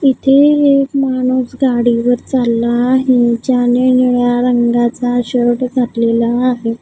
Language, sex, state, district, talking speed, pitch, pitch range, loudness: Marathi, female, Maharashtra, Gondia, 105 wpm, 245 Hz, 240-255 Hz, -13 LUFS